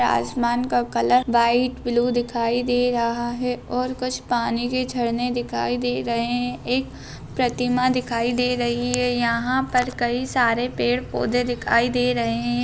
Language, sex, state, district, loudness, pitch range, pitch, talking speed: Hindi, female, Bihar, Araria, -22 LUFS, 235-250 Hz, 245 Hz, 155 wpm